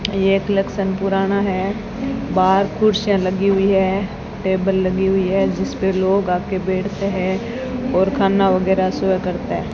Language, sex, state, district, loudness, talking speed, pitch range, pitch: Hindi, female, Rajasthan, Bikaner, -18 LUFS, 160 wpm, 190-200 Hz, 195 Hz